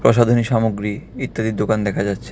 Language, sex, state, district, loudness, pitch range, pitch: Bengali, male, Tripura, West Tripura, -19 LUFS, 105-120 Hz, 110 Hz